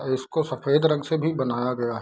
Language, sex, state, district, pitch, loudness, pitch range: Hindi, male, Bihar, Darbhanga, 130 Hz, -24 LUFS, 125-155 Hz